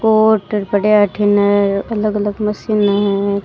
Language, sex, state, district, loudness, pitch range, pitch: Rajasthani, female, Rajasthan, Churu, -15 LUFS, 200-215 Hz, 205 Hz